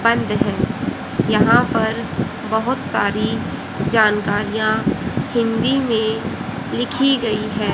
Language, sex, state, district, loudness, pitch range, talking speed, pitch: Hindi, female, Haryana, Jhajjar, -19 LUFS, 215-235 Hz, 95 wpm, 220 Hz